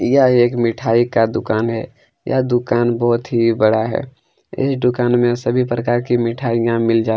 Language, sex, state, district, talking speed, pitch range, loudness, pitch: Hindi, male, Chhattisgarh, Kabirdham, 185 wpm, 115-125 Hz, -17 LUFS, 120 Hz